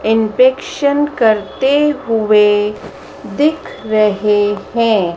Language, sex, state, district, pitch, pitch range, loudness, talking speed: Hindi, female, Madhya Pradesh, Dhar, 220 Hz, 210-270 Hz, -14 LUFS, 70 wpm